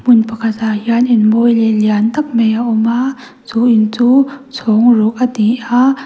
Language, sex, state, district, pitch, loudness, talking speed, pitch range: Mizo, female, Mizoram, Aizawl, 230 Hz, -13 LUFS, 200 wpm, 220-250 Hz